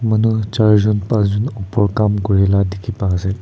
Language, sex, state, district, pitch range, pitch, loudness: Nagamese, male, Nagaland, Kohima, 100-110 Hz, 105 Hz, -16 LUFS